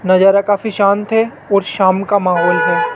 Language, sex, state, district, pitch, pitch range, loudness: Hindi, male, Rajasthan, Jaipur, 200 Hz, 185-205 Hz, -14 LUFS